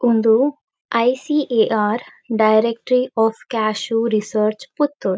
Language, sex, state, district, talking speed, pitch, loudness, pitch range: Tulu, female, Karnataka, Dakshina Kannada, 80 wpm, 230 Hz, -19 LUFS, 215-250 Hz